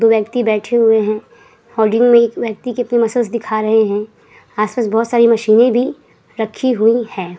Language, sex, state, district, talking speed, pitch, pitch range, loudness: Hindi, female, Uttar Pradesh, Hamirpur, 170 wpm, 225 Hz, 215-240 Hz, -15 LUFS